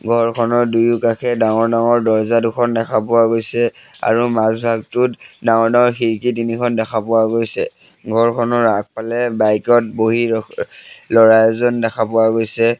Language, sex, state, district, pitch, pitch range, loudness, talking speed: Assamese, male, Assam, Sonitpur, 115 Hz, 110-120 Hz, -16 LUFS, 130 wpm